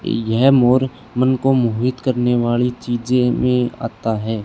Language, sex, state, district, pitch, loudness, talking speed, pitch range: Hindi, male, Haryana, Charkhi Dadri, 125 Hz, -17 LUFS, 150 wpm, 120-125 Hz